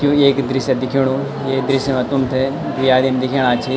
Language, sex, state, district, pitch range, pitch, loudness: Garhwali, male, Uttarakhand, Tehri Garhwal, 130-135 Hz, 135 Hz, -17 LUFS